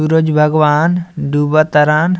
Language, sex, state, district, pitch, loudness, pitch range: Bhojpuri, male, Bihar, Muzaffarpur, 155 Hz, -13 LUFS, 150-160 Hz